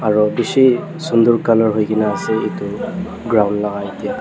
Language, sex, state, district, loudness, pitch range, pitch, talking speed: Nagamese, male, Nagaland, Dimapur, -17 LUFS, 105-115 Hz, 110 Hz, 155 wpm